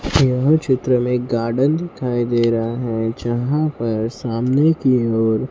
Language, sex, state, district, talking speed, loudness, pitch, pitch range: Hindi, male, Maharashtra, Mumbai Suburban, 150 wpm, -18 LUFS, 125 Hz, 115-135 Hz